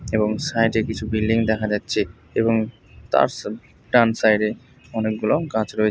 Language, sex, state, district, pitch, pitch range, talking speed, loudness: Bengali, male, West Bengal, North 24 Parganas, 110 Hz, 110-115 Hz, 160 wpm, -21 LUFS